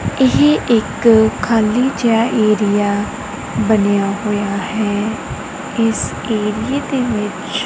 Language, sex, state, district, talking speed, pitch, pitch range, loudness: Punjabi, female, Punjab, Kapurthala, 95 wpm, 215 Hz, 205-230 Hz, -16 LUFS